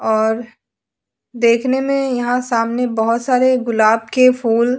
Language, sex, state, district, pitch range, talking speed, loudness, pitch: Hindi, female, Goa, North and South Goa, 230-255 Hz, 125 wpm, -16 LUFS, 240 Hz